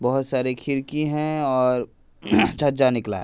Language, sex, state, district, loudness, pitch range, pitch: Hindi, male, Uttar Pradesh, Hamirpur, -22 LUFS, 125-145 Hz, 130 Hz